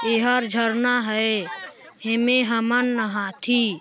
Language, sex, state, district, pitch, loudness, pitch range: Chhattisgarhi, female, Chhattisgarh, Sarguja, 230 Hz, -21 LUFS, 220-245 Hz